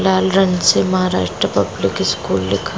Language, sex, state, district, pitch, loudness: Hindi, female, Maharashtra, Aurangabad, 180 Hz, -16 LUFS